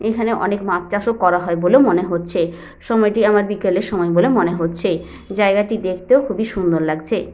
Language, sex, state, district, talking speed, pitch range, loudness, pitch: Bengali, female, West Bengal, Paschim Medinipur, 195 wpm, 175-220 Hz, -17 LUFS, 195 Hz